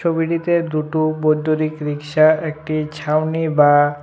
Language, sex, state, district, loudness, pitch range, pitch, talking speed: Bengali, male, Tripura, West Tripura, -18 LUFS, 150-160 Hz, 155 Hz, 105 wpm